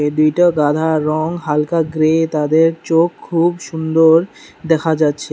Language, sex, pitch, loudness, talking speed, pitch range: Bengali, male, 160 Hz, -15 LUFS, 125 wpm, 155-165 Hz